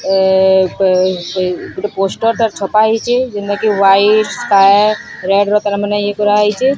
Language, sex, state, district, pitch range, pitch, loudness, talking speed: Odia, female, Odisha, Sambalpur, 195-215 Hz, 205 Hz, -13 LUFS, 105 wpm